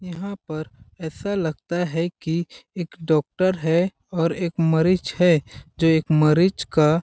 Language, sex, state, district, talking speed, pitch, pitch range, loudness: Hindi, male, Chhattisgarh, Balrampur, 145 wpm, 165 Hz, 160-180 Hz, -22 LUFS